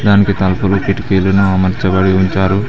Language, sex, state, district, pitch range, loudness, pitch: Telugu, male, Telangana, Mahabubabad, 95-100 Hz, -13 LUFS, 95 Hz